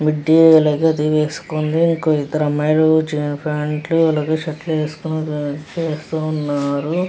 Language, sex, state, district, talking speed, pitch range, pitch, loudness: Telugu, female, Andhra Pradesh, Chittoor, 110 wpm, 150-160 Hz, 155 Hz, -18 LUFS